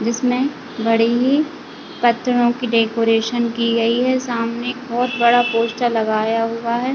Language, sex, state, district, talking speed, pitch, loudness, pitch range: Hindi, female, Chhattisgarh, Bilaspur, 130 wpm, 235 Hz, -18 LUFS, 230-250 Hz